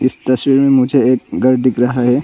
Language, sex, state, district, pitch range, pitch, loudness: Hindi, male, Arunachal Pradesh, Longding, 125-135 Hz, 130 Hz, -13 LUFS